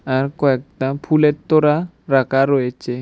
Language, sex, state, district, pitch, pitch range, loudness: Bengali, male, Tripura, West Tripura, 135 Hz, 130-150 Hz, -18 LUFS